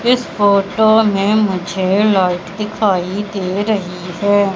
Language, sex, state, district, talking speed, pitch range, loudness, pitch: Hindi, female, Madhya Pradesh, Katni, 120 wpm, 190-210 Hz, -15 LUFS, 200 Hz